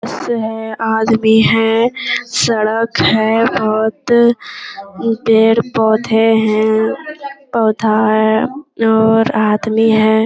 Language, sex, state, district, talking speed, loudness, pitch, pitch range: Hindi, female, Bihar, Jamui, 90 wpm, -13 LUFS, 220 Hz, 220-230 Hz